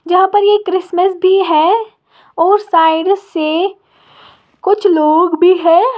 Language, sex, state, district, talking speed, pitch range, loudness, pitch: Hindi, female, Uttar Pradesh, Lalitpur, 130 wpm, 335-400 Hz, -12 LUFS, 370 Hz